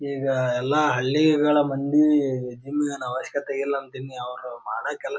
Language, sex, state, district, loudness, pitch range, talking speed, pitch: Kannada, male, Karnataka, Bijapur, -24 LUFS, 130-145 Hz, 150 wpm, 140 Hz